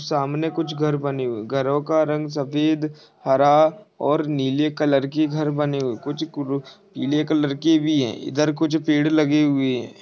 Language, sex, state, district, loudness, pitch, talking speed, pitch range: Hindi, male, Uttar Pradesh, Budaun, -21 LUFS, 150 Hz, 180 wpm, 140-155 Hz